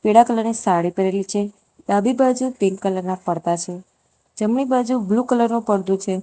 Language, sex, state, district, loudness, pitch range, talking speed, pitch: Gujarati, female, Gujarat, Valsad, -20 LUFS, 190-235 Hz, 165 wpm, 205 Hz